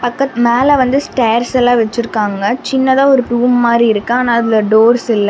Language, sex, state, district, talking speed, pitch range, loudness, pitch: Tamil, female, Tamil Nadu, Namakkal, 160 wpm, 230-260 Hz, -12 LUFS, 240 Hz